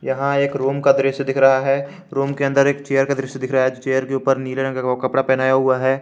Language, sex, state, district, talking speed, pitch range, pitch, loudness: Hindi, male, Jharkhand, Garhwa, 280 wpm, 130-140 Hz, 135 Hz, -18 LUFS